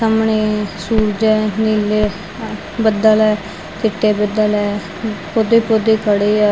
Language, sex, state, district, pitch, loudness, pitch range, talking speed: Punjabi, female, Punjab, Fazilka, 215 Hz, -16 LUFS, 210-220 Hz, 130 wpm